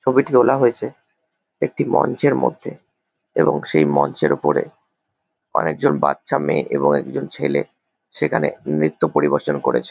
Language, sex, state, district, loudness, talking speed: Bengali, male, West Bengal, Jalpaiguri, -19 LUFS, 135 wpm